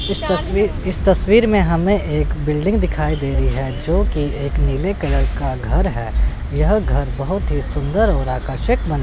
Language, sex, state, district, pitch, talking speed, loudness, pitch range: Hindi, male, Chandigarh, Chandigarh, 155 Hz, 180 wpm, -18 LUFS, 140-195 Hz